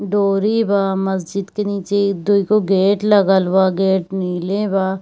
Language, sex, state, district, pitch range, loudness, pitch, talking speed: Hindi, female, Bihar, Darbhanga, 190-205 Hz, -17 LUFS, 195 Hz, 155 wpm